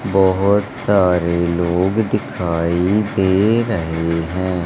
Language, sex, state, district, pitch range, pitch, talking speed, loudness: Hindi, male, Madhya Pradesh, Umaria, 85-100 Hz, 95 Hz, 90 wpm, -17 LUFS